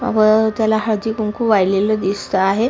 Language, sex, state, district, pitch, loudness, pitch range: Marathi, female, Maharashtra, Sindhudurg, 215 Hz, -17 LUFS, 200-220 Hz